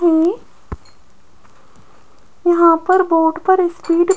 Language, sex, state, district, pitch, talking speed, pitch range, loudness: Hindi, female, Rajasthan, Jaipur, 345 Hz, 100 wpm, 335-370 Hz, -15 LUFS